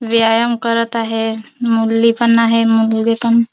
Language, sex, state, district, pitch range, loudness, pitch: Marathi, female, Maharashtra, Dhule, 225-230 Hz, -14 LUFS, 230 Hz